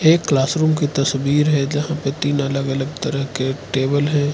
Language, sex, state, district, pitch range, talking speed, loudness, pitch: Hindi, male, Arunachal Pradesh, Lower Dibang Valley, 135-150 Hz, 205 wpm, -19 LUFS, 145 Hz